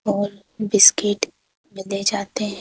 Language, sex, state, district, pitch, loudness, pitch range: Hindi, female, Madhya Pradesh, Bhopal, 205 Hz, -18 LUFS, 200-210 Hz